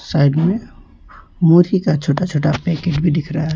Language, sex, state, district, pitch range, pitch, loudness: Hindi, male, West Bengal, Alipurduar, 150-175 Hz, 165 Hz, -16 LUFS